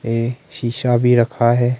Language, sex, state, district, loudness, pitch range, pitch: Hindi, male, Arunachal Pradesh, Longding, -17 LUFS, 120-125 Hz, 120 Hz